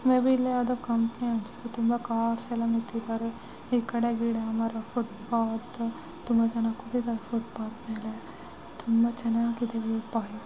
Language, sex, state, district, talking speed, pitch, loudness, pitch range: Kannada, female, Karnataka, Shimoga, 145 wpm, 230 Hz, -29 LUFS, 230-240 Hz